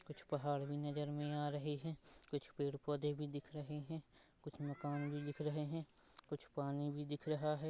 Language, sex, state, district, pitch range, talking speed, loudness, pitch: Hindi, female, Chhattisgarh, Rajnandgaon, 145-150 Hz, 200 wpm, -44 LUFS, 145 Hz